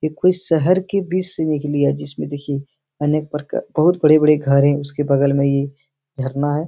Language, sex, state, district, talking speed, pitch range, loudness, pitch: Hindi, male, Bihar, Supaul, 205 wpm, 140-155 Hz, -18 LUFS, 145 Hz